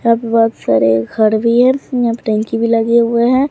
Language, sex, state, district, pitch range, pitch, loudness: Hindi, female, Bihar, Katihar, 220-235 Hz, 230 Hz, -13 LUFS